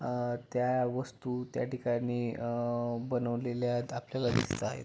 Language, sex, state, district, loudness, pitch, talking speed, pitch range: Marathi, male, Maharashtra, Pune, -33 LUFS, 120 Hz, 125 wpm, 120-125 Hz